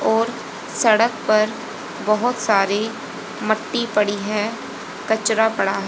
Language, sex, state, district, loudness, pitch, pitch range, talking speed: Hindi, female, Haryana, Rohtak, -20 LUFS, 220 Hz, 210-225 Hz, 110 wpm